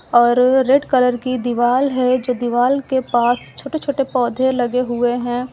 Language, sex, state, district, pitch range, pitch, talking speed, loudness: Hindi, female, Uttar Pradesh, Lucknow, 245-260 Hz, 250 Hz, 175 wpm, -17 LUFS